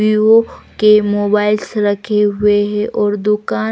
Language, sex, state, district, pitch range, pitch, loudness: Hindi, female, Bihar, West Champaran, 205-215 Hz, 210 Hz, -14 LUFS